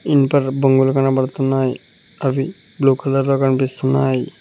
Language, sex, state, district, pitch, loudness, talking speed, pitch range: Telugu, male, Telangana, Mahabubabad, 135 Hz, -17 LUFS, 110 wpm, 135-140 Hz